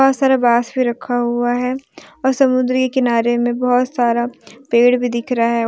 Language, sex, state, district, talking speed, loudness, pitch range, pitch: Hindi, female, Jharkhand, Deoghar, 190 wpm, -16 LUFS, 240-255 Hz, 245 Hz